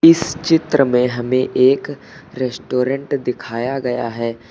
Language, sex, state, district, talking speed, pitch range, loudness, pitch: Hindi, male, Uttar Pradesh, Lucknow, 120 wpm, 125-140 Hz, -18 LUFS, 130 Hz